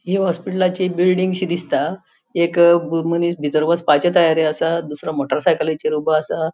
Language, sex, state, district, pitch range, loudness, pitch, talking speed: Konkani, female, Goa, North and South Goa, 160-180 Hz, -18 LUFS, 170 Hz, 140 wpm